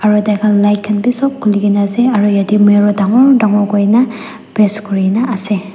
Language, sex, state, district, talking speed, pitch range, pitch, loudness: Nagamese, female, Nagaland, Dimapur, 200 wpm, 205-220 Hz, 210 Hz, -12 LUFS